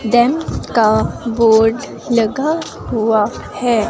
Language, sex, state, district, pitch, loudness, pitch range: Hindi, female, Himachal Pradesh, Shimla, 230 Hz, -16 LUFS, 220-245 Hz